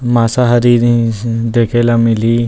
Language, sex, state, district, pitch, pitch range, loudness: Chhattisgarhi, male, Chhattisgarh, Rajnandgaon, 120 Hz, 115-120 Hz, -12 LUFS